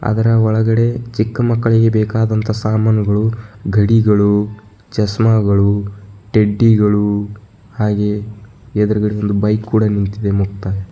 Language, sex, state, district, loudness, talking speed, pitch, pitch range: Kannada, male, Karnataka, Bidar, -15 LUFS, 90 wpm, 105 Hz, 105-110 Hz